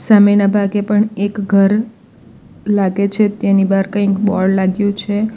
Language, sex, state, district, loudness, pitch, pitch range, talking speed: Gujarati, female, Gujarat, Valsad, -14 LUFS, 205 Hz, 200-210 Hz, 145 wpm